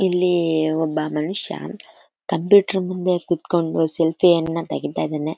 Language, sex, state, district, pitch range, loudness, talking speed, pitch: Kannada, female, Karnataka, Mysore, 160-180 Hz, -20 LUFS, 110 wpm, 170 Hz